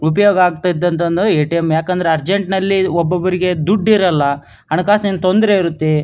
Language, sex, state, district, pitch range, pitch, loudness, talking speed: Kannada, male, Karnataka, Dharwad, 160-190 Hz, 180 Hz, -15 LUFS, 130 wpm